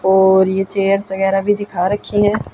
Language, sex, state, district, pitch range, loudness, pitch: Hindi, female, Haryana, Jhajjar, 190-205 Hz, -16 LUFS, 195 Hz